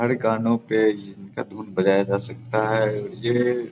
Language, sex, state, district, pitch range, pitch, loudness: Hindi, male, Bihar, Samastipur, 100-120 Hz, 110 Hz, -23 LUFS